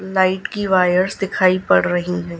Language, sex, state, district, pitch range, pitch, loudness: Hindi, female, Gujarat, Gandhinagar, 180-190 Hz, 185 Hz, -17 LUFS